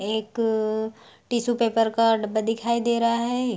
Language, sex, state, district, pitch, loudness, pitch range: Hindi, female, Bihar, Sitamarhi, 225 Hz, -24 LUFS, 220-235 Hz